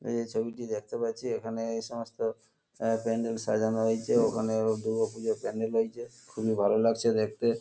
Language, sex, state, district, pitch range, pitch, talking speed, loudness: Bengali, male, West Bengal, Kolkata, 110-115 Hz, 115 Hz, 180 wpm, -30 LUFS